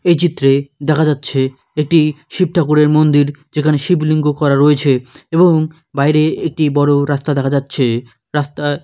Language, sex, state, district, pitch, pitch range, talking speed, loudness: Bengali, male, West Bengal, Malda, 150 Hz, 140-155 Hz, 135 wpm, -14 LUFS